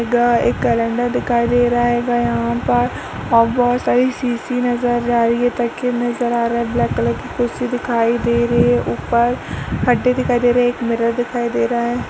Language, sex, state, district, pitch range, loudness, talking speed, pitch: Hindi, female, Uttar Pradesh, Jalaun, 230-245 Hz, -17 LUFS, 210 wpm, 240 Hz